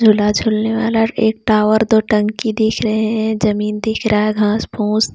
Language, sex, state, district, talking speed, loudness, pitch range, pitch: Hindi, female, Jharkhand, Ranchi, 185 wpm, -16 LUFS, 215-220 Hz, 220 Hz